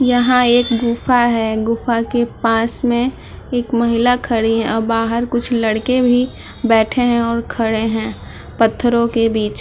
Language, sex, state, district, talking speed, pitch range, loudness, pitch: Hindi, female, Uttar Pradesh, Muzaffarnagar, 155 wpm, 225-245 Hz, -16 LUFS, 235 Hz